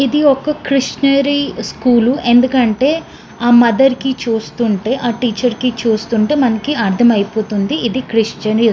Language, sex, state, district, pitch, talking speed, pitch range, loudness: Telugu, female, Andhra Pradesh, Srikakulam, 240 Hz, 125 wpm, 225-270 Hz, -14 LUFS